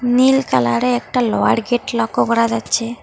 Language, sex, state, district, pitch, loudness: Bengali, female, West Bengal, Alipurduar, 230 Hz, -16 LUFS